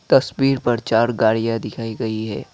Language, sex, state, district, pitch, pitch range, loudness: Hindi, male, Assam, Kamrup Metropolitan, 115 Hz, 110-120 Hz, -20 LUFS